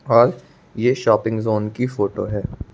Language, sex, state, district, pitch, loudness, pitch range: Hindi, male, Madhya Pradesh, Bhopal, 110 Hz, -20 LUFS, 105-125 Hz